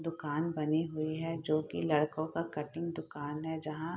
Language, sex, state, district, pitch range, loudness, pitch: Hindi, female, Bihar, Saharsa, 150-165 Hz, -35 LUFS, 155 Hz